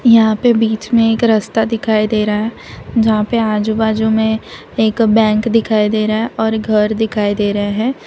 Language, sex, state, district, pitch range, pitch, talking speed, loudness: Hindi, female, Gujarat, Valsad, 215-225 Hz, 220 Hz, 200 wpm, -14 LUFS